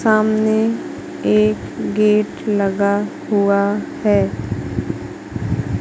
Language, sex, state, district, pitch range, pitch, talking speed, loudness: Hindi, female, Madhya Pradesh, Katni, 200-215 Hz, 205 Hz, 60 wpm, -18 LUFS